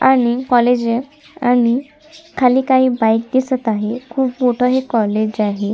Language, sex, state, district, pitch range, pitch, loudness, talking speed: Marathi, female, Maharashtra, Sindhudurg, 230-260 Hz, 245 Hz, -16 LUFS, 145 wpm